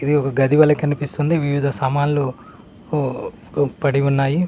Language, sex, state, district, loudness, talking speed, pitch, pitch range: Telugu, male, Telangana, Mahabubabad, -19 LUFS, 135 wpm, 145 Hz, 140-150 Hz